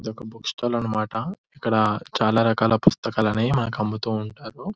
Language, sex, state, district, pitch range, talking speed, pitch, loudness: Telugu, male, Telangana, Nalgonda, 110-115 Hz, 140 wpm, 110 Hz, -23 LUFS